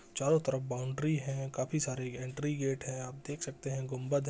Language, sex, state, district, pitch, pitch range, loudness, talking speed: Hindi, male, Bihar, Jahanabad, 135 Hz, 130-145 Hz, -35 LUFS, 210 wpm